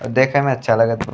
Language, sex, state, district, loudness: Bhojpuri, male, Uttar Pradesh, Deoria, -17 LUFS